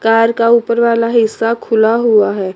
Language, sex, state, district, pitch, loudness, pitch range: Hindi, female, Chandigarh, Chandigarh, 230 Hz, -12 LUFS, 225-230 Hz